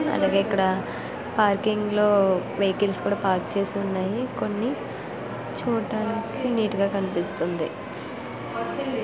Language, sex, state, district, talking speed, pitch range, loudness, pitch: Telugu, female, Andhra Pradesh, Visakhapatnam, 105 wpm, 190-215 Hz, -25 LUFS, 200 Hz